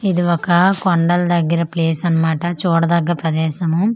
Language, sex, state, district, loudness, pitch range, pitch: Telugu, female, Andhra Pradesh, Manyam, -16 LUFS, 165-175 Hz, 170 Hz